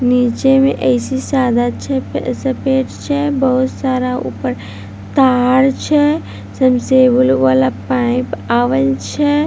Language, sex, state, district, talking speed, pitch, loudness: Maithili, female, Bihar, Vaishali, 115 wpm, 250 Hz, -14 LUFS